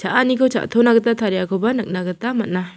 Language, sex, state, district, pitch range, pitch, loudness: Garo, female, Meghalaya, South Garo Hills, 185-235 Hz, 225 Hz, -18 LUFS